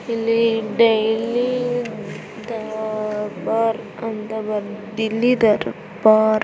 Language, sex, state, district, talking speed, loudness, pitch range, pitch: Kannada, female, Karnataka, Chamarajanagar, 65 wpm, -20 LUFS, 215-230 Hz, 220 Hz